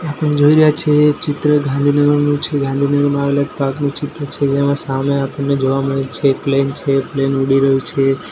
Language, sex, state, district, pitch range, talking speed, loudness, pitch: Gujarati, male, Gujarat, Gandhinagar, 135-145 Hz, 195 wpm, -15 LUFS, 140 Hz